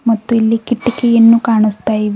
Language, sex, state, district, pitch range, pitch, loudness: Kannada, female, Karnataka, Bidar, 215-235 Hz, 230 Hz, -12 LUFS